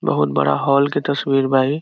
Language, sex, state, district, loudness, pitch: Bhojpuri, male, Bihar, Saran, -18 LUFS, 135 Hz